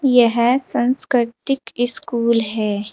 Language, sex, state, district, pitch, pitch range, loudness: Hindi, female, Uttar Pradesh, Saharanpur, 240 Hz, 230-255 Hz, -19 LUFS